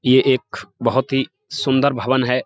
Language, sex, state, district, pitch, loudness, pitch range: Hindi, male, Uttar Pradesh, Budaun, 130 Hz, -19 LUFS, 130-135 Hz